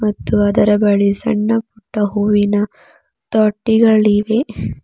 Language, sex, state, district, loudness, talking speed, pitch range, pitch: Kannada, female, Karnataka, Bidar, -15 LUFS, 85 wpm, 205-220 Hz, 210 Hz